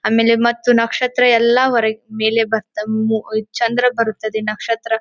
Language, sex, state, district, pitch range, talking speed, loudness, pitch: Kannada, female, Karnataka, Dharwad, 220-235 Hz, 130 wpm, -16 LUFS, 225 Hz